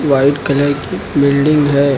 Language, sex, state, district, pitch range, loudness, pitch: Hindi, male, Uttar Pradesh, Lucknow, 140-145 Hz, -14 LUFS, 140 Hz